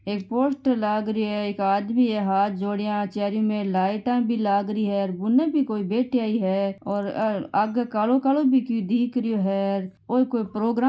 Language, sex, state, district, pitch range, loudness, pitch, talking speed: Marwari, female, Rajasthan, Nagaur, 200-245 Hz, -24 LUFS, 215 Hz, 215 wpm